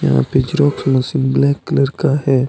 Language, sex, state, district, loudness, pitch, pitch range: Hindi, male, Jharkhand, Deoghar, -16 LUFS, 135 Hz, 130-140 Hz